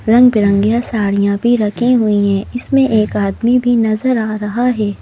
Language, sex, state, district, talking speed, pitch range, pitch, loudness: Hindi, female, Madhya Pradesh, Bhopal, 180 wpm, 205-245 Hz, 220 Hz, -14 LUFS